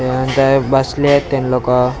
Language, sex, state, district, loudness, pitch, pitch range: Marathi, male, Maharashtra, Mumbai Suburban, -14 LUFS, 130 Hz, 125-135 Hz